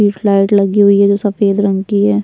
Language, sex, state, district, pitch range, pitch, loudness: Hindi, female, Bihar, Kishanganj, 200-205 Hz, 200 Hz, -12 LUFS